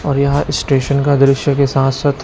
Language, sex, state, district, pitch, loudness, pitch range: Hindi, male, Chhattisgarh, Raipur, 140 Hz, -14 LUFS, 135-140 Hz